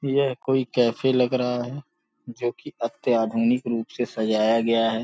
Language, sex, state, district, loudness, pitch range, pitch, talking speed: Hindi, male, Uttar Pradesh, Gorakhpur, -24 LUFS, 115-130 Hz, 120 Hz, 180 wpm